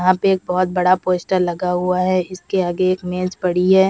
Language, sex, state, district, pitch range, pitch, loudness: Hindi, female, Uttar Pradesh, Jalaun, 180-185 Hz, 185 Hz, -18 LUFS